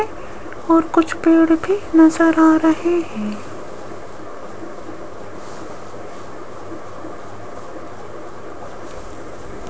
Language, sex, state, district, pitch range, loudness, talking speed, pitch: Hindi, female, Rajasthan, Jaipur, 320-335 Hz, -15 LUFS, 50 wpm, 330 Hz